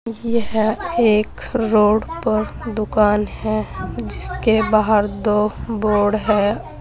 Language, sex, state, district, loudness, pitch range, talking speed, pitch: Hindi, female, Uttar Pradesh, Saharanpur, -18 LUFS, 210-225 Hz, 95 wpm, 215 Hz